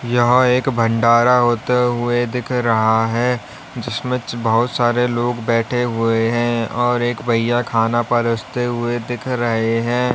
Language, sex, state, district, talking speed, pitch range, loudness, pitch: Hindi, male, Uttar Pradesh, Lalitpur, 140 wpm, 115-125 Hz, -18 LUFS, 120 Hz